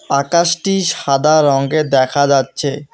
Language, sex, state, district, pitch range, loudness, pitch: Bengali, male, West Bengal, Alipurduar, 140-170 Hz, -14 LUFS, 145 Hz